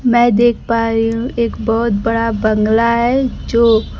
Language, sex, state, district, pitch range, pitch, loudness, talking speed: Hindi, female, Bihar, Kaimur, 225-240 Hz, 230 Hz, -14 LUFS, 165 wpm